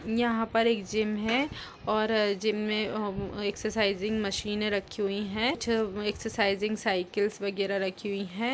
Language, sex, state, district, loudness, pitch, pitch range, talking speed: Hindi, female, Uttar Pradesh, Jalaun, -29 LUFS, 210 Hz, 200-220 Hz, 150 wpm